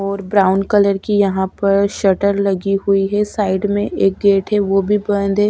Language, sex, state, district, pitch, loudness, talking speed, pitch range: Hindi, female, Bihar, Katihar, 200 Hz, -16 LUFS, 205 wpm, 195-205 Hz